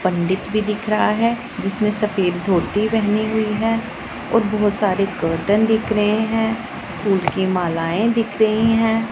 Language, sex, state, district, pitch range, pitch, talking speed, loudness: Hindi, female, Punjab, Pathankot, 195-225 Hz, 210 Hz, 160 wpm, -19 LUFS